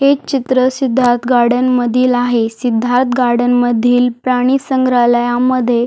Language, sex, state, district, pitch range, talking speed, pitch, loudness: Marathi, female, Maharashtra, Aurangabad, 240-255 Hz, 120 wpm, 245 Hz, -13 LUFS